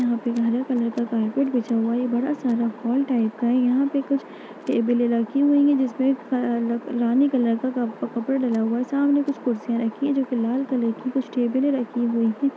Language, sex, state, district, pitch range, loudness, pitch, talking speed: Hindi, female, Bihar, Bhagalpur, 235-270 Hz, -23 LUFS, 245 Hz, 240 wpm